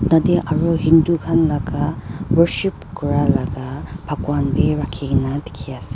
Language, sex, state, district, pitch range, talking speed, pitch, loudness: Nagamese, female, Nagaland, Dimapur, 140-165 Hz, 120 wpm, 155 Hz, -19 LUFS